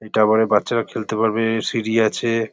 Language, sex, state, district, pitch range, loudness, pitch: Bengali, male, West Bengal, Paschim Medinipur, 110-115 Hz, -19 LUFS, 110 Hz